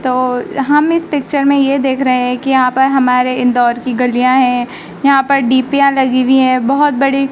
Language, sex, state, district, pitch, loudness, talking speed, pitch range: Hindi, female, Madhya Pradesh, Dhar, 265 Hz, -12 LUFS, 205 wpm, 255-275 Hz